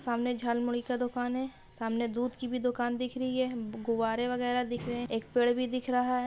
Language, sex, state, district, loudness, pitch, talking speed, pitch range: Hindi, female, Bihar, Purnia, -32 LUFS, 245 Hz, 230 wpm, 235-250 Hz